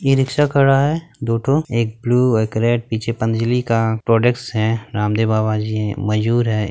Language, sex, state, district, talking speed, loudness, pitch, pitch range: Bhojpuri, male, Uttar Pradesh, Gorakhpur, 190 wpm, -18 LUFS, 115 Hz, 110-125 Hz